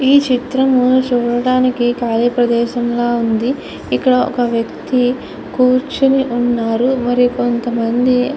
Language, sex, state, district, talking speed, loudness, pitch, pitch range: Telugu, female, Andhra Pradesh, Chittoor, 110 wpm, -15 LUFS, 245 Hz, 240-255 Hz